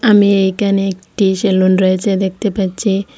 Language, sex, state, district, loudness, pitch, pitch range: Bengali, female, Assam, Hailakandi, -14 LUFS, 195 Hz, 190-200 Hz